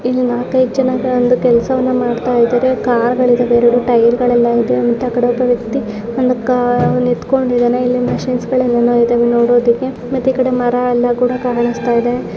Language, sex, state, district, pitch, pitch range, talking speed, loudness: Kannada, female, Karnataka, Bellary, 245 Hz, 240-250 Hz, 165 wpm, -14 LUFS